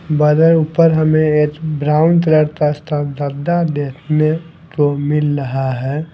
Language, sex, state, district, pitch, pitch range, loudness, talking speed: Hindi, male, Maharashtra, Gondia, 150 Hz, 145-160 Hz, -15 LUFS, 105 wpm